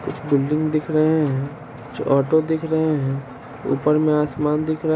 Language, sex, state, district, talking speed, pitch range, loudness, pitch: Hindi, male, Bihar, Sitamarhi, 110 wpm, 140-155 Hz, -20 LUFS, 150 Hz